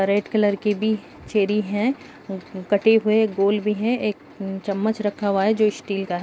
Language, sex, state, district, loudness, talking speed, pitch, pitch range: Hindi, female, Uttar Pradesh, Jalaun, -22 LUFS, 190 wpm, 205 Hz, 195-215 Hz